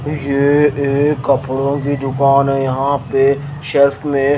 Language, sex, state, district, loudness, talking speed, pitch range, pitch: Hindi, male, Haryana, Jhajjar, -15 LUFS, 135 wpm, 135-145 Hz, 140 Hz